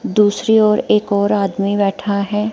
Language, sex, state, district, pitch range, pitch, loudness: Hindi, female, Himachal Pradesh, Shimla, 200-210 Hz, 205 Hz, -16 LUFS